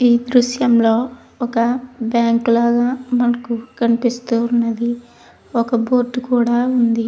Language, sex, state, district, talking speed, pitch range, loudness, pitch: Telugu, female, Andhra Pradesh, Krishna, 110 wpm, 235-245 Hz, -17 LUFS, 240 Hz